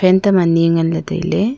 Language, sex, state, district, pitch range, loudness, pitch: Wancho, female, Arunachal Pradesh, Longding, 165-200 Hz, -15 LUFS, 185 Hz